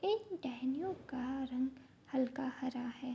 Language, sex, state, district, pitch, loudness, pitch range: Hindi, female, Bihar, Kishanganj, 265 Hz, -40 LUFS, 255-285 Hz